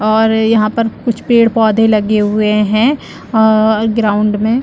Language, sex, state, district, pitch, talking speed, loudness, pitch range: Hindi, female, Chhattisgarh, Bilaspur, 220 Hz, 145 wpm, -12 LUFS, 215-225 Hz